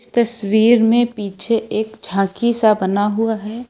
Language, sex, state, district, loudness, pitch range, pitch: Hindi, female, Uttar Pradesh, Lucknow, -17 LUFS, 205-235 Hz, 220 Hz